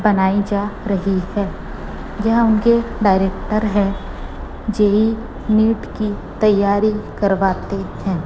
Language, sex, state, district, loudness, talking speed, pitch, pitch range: Hindi, female, Chhattisgarh, Raipur, -18 LUFS, 95 wpm, 205 Hz, 195-215 Hz